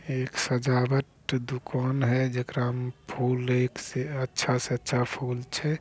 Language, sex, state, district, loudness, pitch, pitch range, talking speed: Angika, male, Bihar, Begusarai, -28 LUFS, 125 Hz, 125-130 Hz, 145 wpm